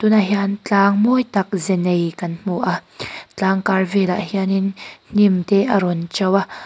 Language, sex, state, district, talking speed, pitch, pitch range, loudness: Mizo, female, Mizoram, Aizawl, 190 wpm, 195 Hz, 185-200 Hz, -18 LUFS